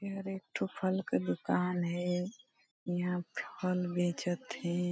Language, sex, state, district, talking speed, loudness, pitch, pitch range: Hindi, female, Chhattisgarh, Balrampur, 110 wpm, -35 LUFS, 180 Hz, 175-190 Hz